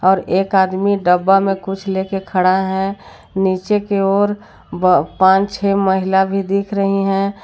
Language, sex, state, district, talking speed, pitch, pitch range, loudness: Hindi, female, Jharkhand, Garhwa, 155 wpm, 195 Hz, 190-195 Hz, -16 LUFS